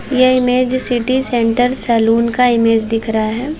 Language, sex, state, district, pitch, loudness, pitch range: Hindi, female, Uttar Pradesh, Varanasi, 245 Hz, -14 LUFS, 225-255 Hz